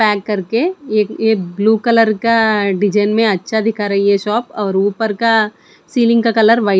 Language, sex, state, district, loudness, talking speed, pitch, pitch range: Hindi, female, Chandigarh, Chandigarh, -14 LUFS, 195 wpm, 215 Hz, 205-225 Hz